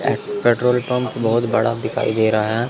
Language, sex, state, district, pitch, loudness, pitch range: Hindi, male, Chandigarh, Chandigarh, 120 Hz, -19 LUFS, 110-125 Hz